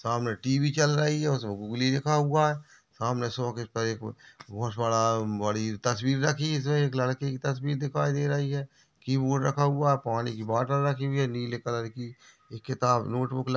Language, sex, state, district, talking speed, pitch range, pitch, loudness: Hindi, male, Chhattisgarh, Raigarh, 210 wpm, 120-140 Hz, 130 Hz, -28 LUFS